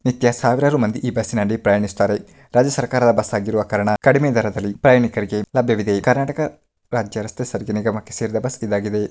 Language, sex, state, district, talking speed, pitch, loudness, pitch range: Kannada, male, Karnataka, Mysore, 145 wpm, 110 Hz, -19 LUFS, 105-125 Hz